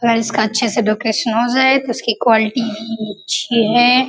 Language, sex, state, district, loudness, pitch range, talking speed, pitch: Hindi, female, Uttar Pradesh, Gorakhpur, -16 LUFS, 220-245 Hz, 190 wpm, 230 Hz